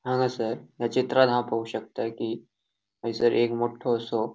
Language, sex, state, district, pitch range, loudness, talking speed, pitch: Konkani, male, Goa, North and South Goa, 115-125 Hz, -27 LUFS, 150 wpm, 120 Hz